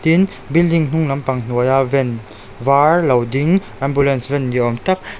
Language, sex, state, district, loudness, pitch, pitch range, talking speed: Mizo, male, Mizoram, Aizawl, -16 LUFS, 135 Hz, 125-160 Hz, 160 wpm